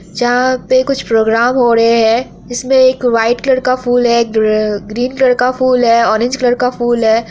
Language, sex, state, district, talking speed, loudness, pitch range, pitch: Hindi, female, Bihar, Araria, 215 wpm, -12 LUFS, 230-255 Hz, 245 Hz